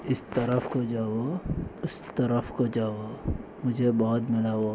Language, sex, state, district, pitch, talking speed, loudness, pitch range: Hindi, male, Maharashtra, Solapur, 120 Hz, 115 wpm, -29 LUFS, 115-125 Hz